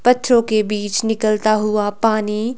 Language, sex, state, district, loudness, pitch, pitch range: Hindi, female, Himachal Pradesh, Shimla, -17 LUFS, 215 Hz, 210-225 Hz